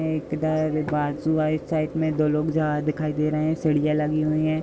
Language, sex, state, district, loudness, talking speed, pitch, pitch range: Hindi, female, Uttar Pradesh, Budaun, -24 LUFS, 155 wpm, 155 Hz, 150-155 Hz